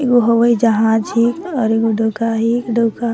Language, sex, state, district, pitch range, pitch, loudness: Sadri, female, Chhattisgarh, Jashpur, 225-235 Hz, 230 Hz, -15 LUFS